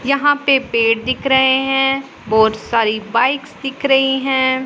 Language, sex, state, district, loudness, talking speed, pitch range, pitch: Hindi, female, Punjab, Pathankot, -15 LUFS, 165 wpm, 235-270 Hz, 265 Hz